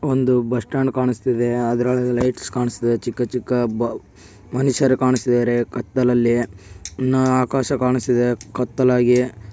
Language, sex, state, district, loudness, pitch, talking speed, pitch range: Kannada, male, Karnataka, Bellary, -19 LUFS, 125 Hz, 105 wpm, 120-130 Hz